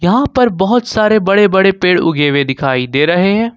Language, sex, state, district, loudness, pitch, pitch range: Hindi, male, Jharkhand, Ranchi, -12 LUFS, 190 Hz, 155-215 Hz